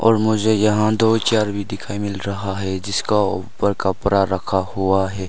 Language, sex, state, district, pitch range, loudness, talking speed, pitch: Hindi, male, Arunachal Pradesh, Longding, 95-110 Hz, -19 LUFS, 180 wpm, 100 Hz